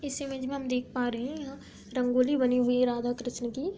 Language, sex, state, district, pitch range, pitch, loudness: Hindi, female, Uttar Pradesh, Budaun, 245-275 Hz, 255 Hz, -29 LUFS